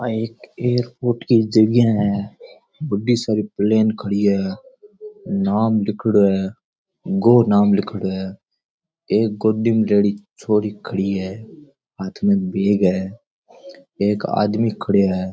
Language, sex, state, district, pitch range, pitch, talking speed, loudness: Rajasthani, male, Rajasthan, Churu, 100-125 Hz, 110 Hz, 130 wpm, -19 LUFS